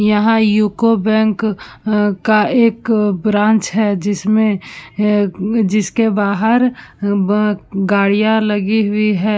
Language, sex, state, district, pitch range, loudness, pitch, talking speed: Hindi, female, Uttar Pradesh, Budaun, 205-220 Hz, -15 LUFS, 210 Hz, 110 wpm